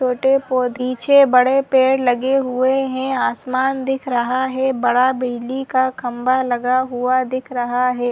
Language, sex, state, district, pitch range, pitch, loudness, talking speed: Hindi, female, Chhattisgarh, Balrampur, 250-265 Hz, 255 Hz, -18 LUFS, 155 wpm